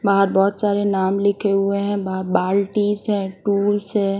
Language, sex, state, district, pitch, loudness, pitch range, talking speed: Hindi, female, Odisha, Nuapada, 200 Hz, -20 LUFS, 195-205 Hz, 170 wpm